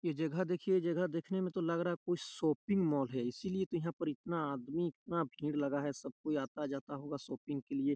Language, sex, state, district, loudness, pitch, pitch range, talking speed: Hindi, male, Chhattisgarh, Raigarh, -37 LUFS, 160 Hz, 145-175 Hz, 235 wpm